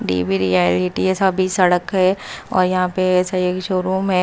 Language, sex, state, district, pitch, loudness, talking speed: Hindi, female, Maharashtra, Mumbai Suburban, 185 Hz, -18 LUFS, 170 wpm